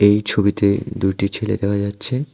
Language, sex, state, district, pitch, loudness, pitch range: Bengali, male, Tripura, West Tripura, 100 Hz, -19 LUFS, 100-110 Hz